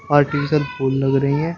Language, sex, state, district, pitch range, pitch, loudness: Hindi, male, Uttar Pradesh, Shamli, 135-150 Hz, 145 Hz, -19 LUFS